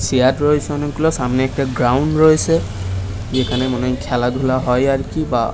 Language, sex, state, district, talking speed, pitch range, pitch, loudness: Bengali, male, West Bengal, Kolkata, 150 wpm, 125-145 Hz, 130 Hz, -17 LUFS